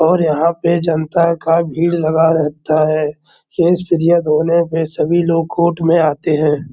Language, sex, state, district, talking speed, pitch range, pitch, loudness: Hindi, male, Bihar, Araria, 150 wpm, 155-170 Hz, 165 Hz, -15 LUFS